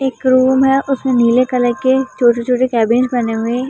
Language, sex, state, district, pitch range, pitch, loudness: Hindi, female, Uttar Pradesh, Jalaun, 240-260 Hz, 255 Hz, -14 LUFS